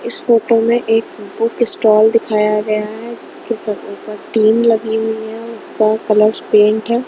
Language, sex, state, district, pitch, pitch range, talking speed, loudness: Hindi, female, Punjab, Kapurthala, 220 Hz, 215-230 Hz, 170 wpm, -15 LUFS